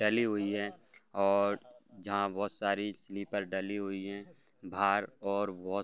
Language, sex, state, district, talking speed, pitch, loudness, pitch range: Hindi, male, Uttar Pradesh, Varanasi, 155 wpm, 100 Hz, -34 LUFS, 100-105 Hz